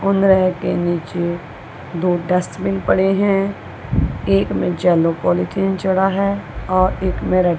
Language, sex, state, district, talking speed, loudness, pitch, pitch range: Hindi, female, Punjab, Kapurthala, 140 wpm, -18 LUFS, 185 Hz, 175-195 Hz